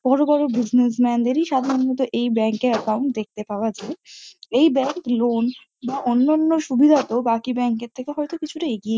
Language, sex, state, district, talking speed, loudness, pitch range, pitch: Bengali, female, West Bengal, Kolkata, 165 wpm, -20 LUFS, 235-295 Hz, 255 Hz